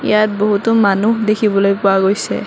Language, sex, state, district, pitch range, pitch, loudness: Assamese, female, Assam, Kamrup Metropolitan, 200-215 Hz, 210 Hz, -14 LUFS